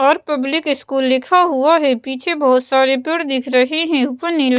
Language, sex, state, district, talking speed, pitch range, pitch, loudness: Hindi, female, Bihar, West Champaran, 195 wpm, 260-320 Hz, 270 Hz, -16 LUFS